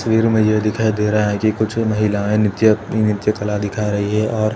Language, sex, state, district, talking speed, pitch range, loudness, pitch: Hindi, male, Uttar Pradesh, Etah, 235 wpm, 105-110 Hz, -17 LUFS, 105 Hz